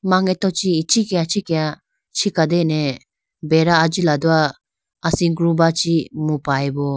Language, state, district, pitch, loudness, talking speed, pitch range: Idu Mishmi, Arunachal Pradesh, Lower Dibang Valley, 165 Hz, -18 LUFS, 95 wpm, 155-180 Hz